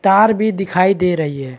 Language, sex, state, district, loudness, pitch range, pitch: Hindi, male, Chhattisgarh, Balrampur, -15 LUFS, 165-205 Hz, 190 Hz